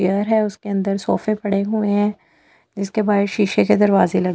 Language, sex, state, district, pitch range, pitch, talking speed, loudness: Hindi, female, Delhi, New Delhi, 195-210 Hz, 205 Hz, 165 wpm, -19 LUFS